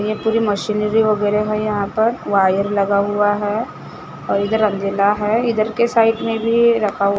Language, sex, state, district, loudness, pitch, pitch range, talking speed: Hindi, male, Maharashtra, Gondia, -17 LUFS, 210 Hz, 200-225 Hz, 185 wpm